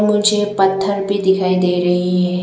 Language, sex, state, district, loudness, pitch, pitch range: Hindi, female, Arunachal Pradesh, Lower Dibang Valley, -16 LUFS, 190 Hz, 180-200 Hz